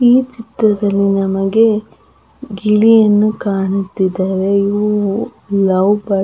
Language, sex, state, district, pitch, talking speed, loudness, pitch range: Kannada, female, Karnataka, Belgaum, 205 Hz, 85 wpm, -14 LUFS, 195-215 Hz